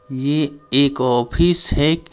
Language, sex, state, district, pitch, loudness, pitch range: Hindi, male, Chhattisgarh, Jashpur, 145 Hz, -15 LUFS, 130-160 Hz